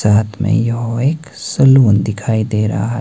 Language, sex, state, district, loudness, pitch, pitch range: Hindi, male, Himachal Pradesh, Shimla, -14 LUFS, 110 Hz, 105-120 Hz